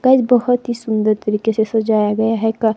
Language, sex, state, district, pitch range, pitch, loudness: Hindi, female, Himachal Pradesh, Shimla, 215-240 Hz, 225 Hz, -16 LUFS